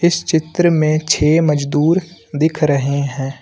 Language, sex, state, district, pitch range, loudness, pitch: Hindi, male, Uttar Pradesh, Lucknow, 145-165 Hz, -16 LUFS, 155 Hz